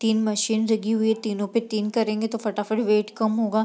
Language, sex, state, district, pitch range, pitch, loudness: Hindi, female, Bihar, East Champaran, 215-225 Hz, 220 Hz, -24 LUFS